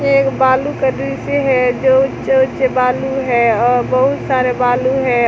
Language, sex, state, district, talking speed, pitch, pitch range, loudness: Hindi, female, Jharkhand, Garhwa, 180 wpm, 260 Hz, 250-270 Hz, -14 LUFS